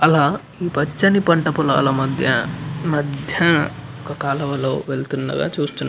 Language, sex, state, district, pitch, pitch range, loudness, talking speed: Telugu, male, Andhra Pradesh, Anantapur, 145 Hz, 140-155 Hz, -19 LUFS, 100 wpm